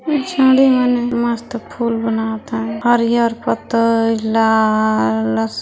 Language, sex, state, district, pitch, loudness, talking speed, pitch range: Hindi, female, Chhattisgarh, Balrampur, 230 Hz, -16 LUFS, 85 wpm, 220-240 Hz